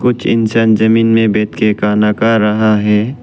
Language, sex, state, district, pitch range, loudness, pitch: Hindi, male, Arunachal Pradesh, Lower Dibang Valley, 105-115 Hz, -12 LUFS, 110 Hz